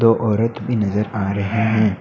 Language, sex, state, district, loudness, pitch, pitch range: Hindi, male, Assam, Hailakandi, -19 LUFS, 110 Hz, 100-115 Hz